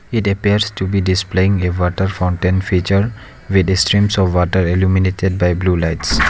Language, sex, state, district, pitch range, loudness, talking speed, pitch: English, male, Arunachal Pradesh, Lower Dibang Valley, 90-100 Hz, -16 LUFS, 160 wpm, 95 Hz